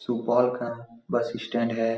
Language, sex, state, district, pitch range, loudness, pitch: Hindi, male, Bihar, Supaul, 115-120 Hz, -27 LUFS, 115 Hz